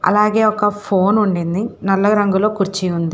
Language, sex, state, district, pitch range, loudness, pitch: Telugu, female, Telangana, Hyderabad, 185-210 Hz, -16 LUFS, 205 Hz